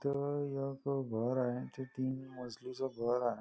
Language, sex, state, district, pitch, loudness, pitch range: Marathi, male, Maharashtra, Nagpur, 130 Hz, -38 LUFS, 125-135 Hz